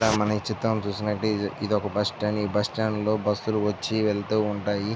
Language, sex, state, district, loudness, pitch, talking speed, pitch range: Telugu, male, Andhra Pradesh, Visakhapatnam, -26 LUFS, 105 Hz, 215 wpm, 105-110 Hz